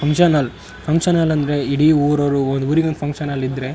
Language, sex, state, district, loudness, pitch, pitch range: Kannada, male, Karnataka, Raichur, -17 LUFS, 145 Hz, 140-155 Hz